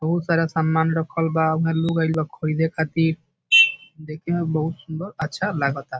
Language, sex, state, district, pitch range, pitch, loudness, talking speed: Bhojpuri, male, Bihar, Saran, 160-165 Hz, 160 Hz, -21 LUFS, 170 wpm